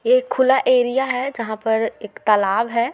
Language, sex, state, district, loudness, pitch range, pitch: Hindi, female, Bihar, Gaya, -19 LUFS, 225-265 Hz, 245 Hz